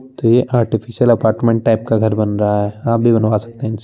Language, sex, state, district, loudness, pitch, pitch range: Hindi, male, Bihar, Begusarai, -15 LUFS, 115 Hz, 110-120 Hz